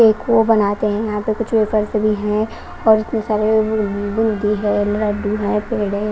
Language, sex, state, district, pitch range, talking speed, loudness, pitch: Hindi, female, Punjab, Kapurthala, 210-220 Hz, 175 wpm, -18 LUFS, 215 Hz